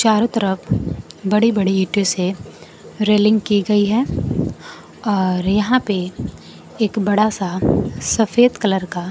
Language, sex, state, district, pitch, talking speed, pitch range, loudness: Hindi, female, Bihar, Kaimur, 205 Hz, 125 wpm, 185-215 Hz, -18 LUFS